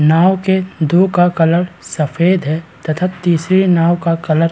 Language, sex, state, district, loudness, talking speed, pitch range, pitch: Hindi, male, Uttarakhand, Tehri Garhwal, -14 LUFS, 175 wpm, 165-180 Hz, 170 Hz